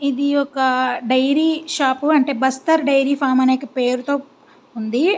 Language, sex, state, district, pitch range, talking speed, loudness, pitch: Telugu, female, Andhra Pradesh, Visakhapatnam, 260-285 Hz, 125 wpm, -18 LUFS, 275 Hz